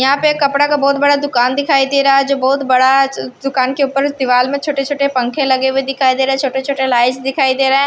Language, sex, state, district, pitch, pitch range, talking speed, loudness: Hindi, female, Bihar, Patna, 270 Hz, 260-280 Hz, 265 wpm, -14 LUFS